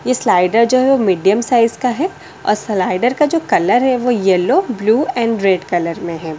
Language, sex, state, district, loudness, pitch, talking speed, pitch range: Hindi, female, Delhi, New Delhi, -15 LUFS, 230 Hz, 225 wpm, 190-250 Hz